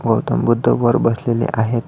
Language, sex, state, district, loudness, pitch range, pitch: Marathi, male, Maharashtra, Solapur, -17 LUFS, 115-120 Hz, 115 Hz